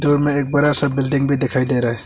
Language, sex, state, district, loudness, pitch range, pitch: Hindi, male, Arunachal Pradesh, Longding, -16 LUFS, 130-145 Hz, 140 Hz